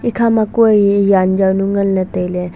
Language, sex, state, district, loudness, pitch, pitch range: Wancho, male, Arunachal Pradesh, Longding, -13 LUFS, 195 Hz, 185-215 Hz